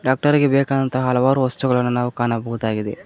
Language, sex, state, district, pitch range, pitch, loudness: Kannada, male, Karnataka, Koppal, 120-135 Hz, 125 Hz, -19 LUFS